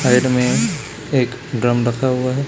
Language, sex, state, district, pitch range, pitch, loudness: Hindi, male, Chhattisgarh, Raipur, 120-130 Hz, 125 Hz, -18 LUFS